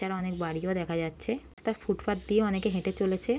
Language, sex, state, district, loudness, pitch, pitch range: Bengali, female, West Bengal, Jhargram, -31 LUFS, 190 Hz, 185-215 Hz